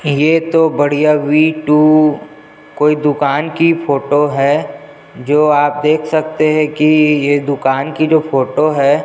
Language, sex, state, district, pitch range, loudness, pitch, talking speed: Hindi, male, Chhattisgarh, Jashpur, 145-155 Hz, -13 LUFS, 150 Hz, 145 wpm